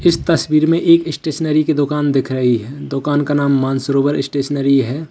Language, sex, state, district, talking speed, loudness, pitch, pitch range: Hindi, male, Uttar Pradesh, Lalitpur, 190 wpm, -16 LUFS, 145 Hz, 135-155 Hz